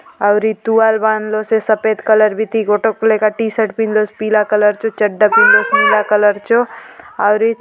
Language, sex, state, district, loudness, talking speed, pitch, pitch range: Halbi, female, Chhattisgarh, Bastar, -13 LUFS, 190 wpm, 220 Hz, 210-225 Hz